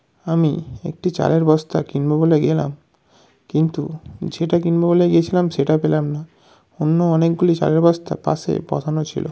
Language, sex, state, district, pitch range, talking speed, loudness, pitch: Bengali, male, West Bengal, North 24 Parganas, 155-170 Hz, 150 wpm, -18 LUFS, 160 Hz